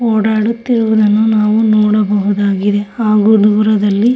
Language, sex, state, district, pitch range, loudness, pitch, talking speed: Kannada, female, Karnataka, Shimoga, 210-220 Hz, -12 LUFS, 215 Hz, 70 wpm